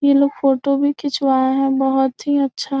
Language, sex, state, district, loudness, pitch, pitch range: Hindi, female, Bihar, Gopalganj, -18 LUFS, 275 Hz, 270-280 Hz